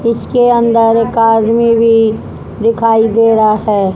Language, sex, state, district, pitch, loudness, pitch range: Hindi, female, Haryana, Rohtak, 225 Hz, -10 LUFS, 225-230 Hz